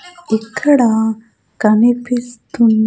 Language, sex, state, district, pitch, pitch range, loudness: Telugu, female, Andhra Pradesh, Sri Satya Sai, 230 Hz, 220-245 Hz, -15 LUFS